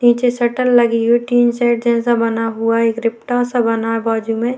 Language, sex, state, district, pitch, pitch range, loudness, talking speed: Hindi, female, Bihar, Vaishali, 235 Hz, 230-240 Hz, -16 LUFS, 235 wpm